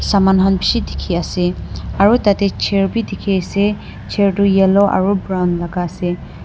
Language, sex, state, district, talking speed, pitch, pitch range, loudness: Nagamese, female, Nagaland, Dimapur, 165 wpm, 195 Hz, 180-200 Hz, -16 LUFS